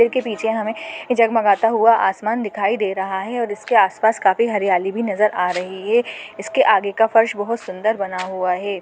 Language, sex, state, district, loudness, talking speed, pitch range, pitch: Hindi, female, Chhattisgarh, Bastar, -18 LUFS, 210 wpm, 190-225 Hz, 215 Hz